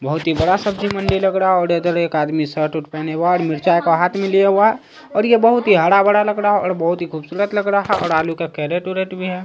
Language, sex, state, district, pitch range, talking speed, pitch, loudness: Hindi, male, Bihar, Saharsa, 165-200 Hz, 280 wpm, 180 Hz, -17 LUFS